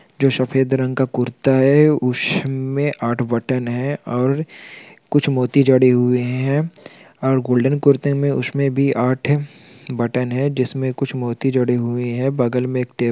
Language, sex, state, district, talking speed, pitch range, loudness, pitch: Hindi, male, Chhattisgarh, Rajnandgaon, 160 wpm, 125-140 Hz, -18 LUFS, 130 Hz